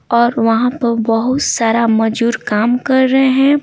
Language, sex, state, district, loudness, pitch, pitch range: Hindi, female, Bihar, Patna, -14 LUFS, 235 Hz, 225-260 Hz